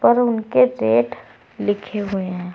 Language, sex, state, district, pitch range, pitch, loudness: Hindi, female, Uttar Pradesh, Saharanpur, 125-205 Hz, 190 Hz, -19 LUFS